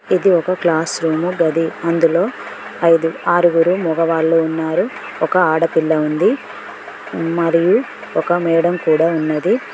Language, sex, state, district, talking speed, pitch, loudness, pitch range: Telugu, female, Telangana, Mahabubabad, 110 wpm, 165 Hz, -16 LUFS, 160-170 Hz